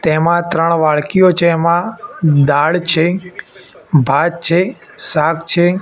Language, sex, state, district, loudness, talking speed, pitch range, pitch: Gujarati, male, Gujarat, Gandhinagar, -13 LUFS, 115 wpm, 160-180 Hz, 170 Hz